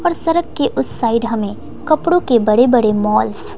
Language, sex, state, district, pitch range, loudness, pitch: Hindi, female, Bihar, West Champaran, 215-330 Hz, -15 LUFS, 240 Hz